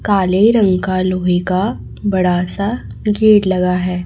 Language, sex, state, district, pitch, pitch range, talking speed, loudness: Hindi, male, Chhattisgarh, Raipur, 185 Hz, 180-205 Hz, 150 wpm, -15 LUFS